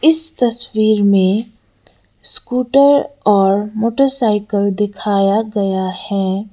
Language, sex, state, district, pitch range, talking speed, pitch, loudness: Hindi, female, Sikkim, Gangtok, 200-245 Hz, 85 wpm, 210 Hz, -15 LUFS